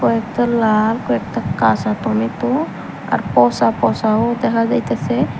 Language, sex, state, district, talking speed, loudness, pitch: Bengali, female, Tripura, Unakoti, 110 wpm, -17 LUFS, 215 Hz